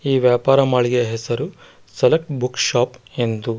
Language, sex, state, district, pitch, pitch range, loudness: Kannada, male, Karnataka, Bangalore, 125 Hz, 120-135 Hz, -18 LUFS